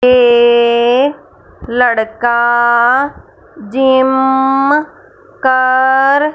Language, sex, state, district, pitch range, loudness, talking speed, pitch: Hindi, female, Punjab, Fazilka, 240-275 Hz, -11 LUFS, 40 wpm, 260 Hz